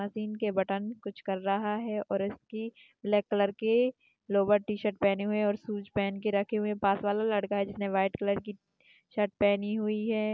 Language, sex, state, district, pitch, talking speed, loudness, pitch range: Hindi, female, Maharashtra, Dhule, 205 Hz, 195 wpm, -30 LUFS, 200-215 Hz